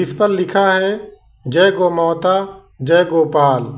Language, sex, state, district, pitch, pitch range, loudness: Hindi, male, Uttar Pradesh, Lalitpur, 180 Hz, 160-195 Hz, -15 LUFS